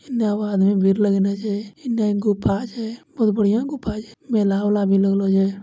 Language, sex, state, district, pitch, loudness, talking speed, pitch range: Angika, male, Bihar, Bhagalpur, 210 Hz, -20 LUFS, 170 wpm, 200-225 Hz